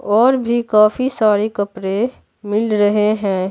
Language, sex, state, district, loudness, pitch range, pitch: Hindi, male, Bihar, Patna, -16 LUFS, 205-235 Hz, 215 Hz